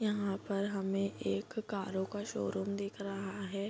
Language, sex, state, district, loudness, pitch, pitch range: Hindi, female, Bihar, Bhagalpur, -37 LUFS, 200 Hz, 195-205 Hz